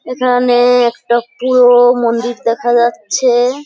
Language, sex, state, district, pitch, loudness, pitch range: Bengali, female, West Bengal, Jhargram, 245 Hz, -12 LUFS, 240-250 Hz